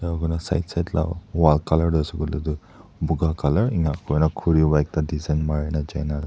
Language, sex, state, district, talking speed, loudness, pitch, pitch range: Nagamese, male, Nagaland, Dimapur, 200 wpm, -23 LUFS, 80 Hz, 75-85 Hz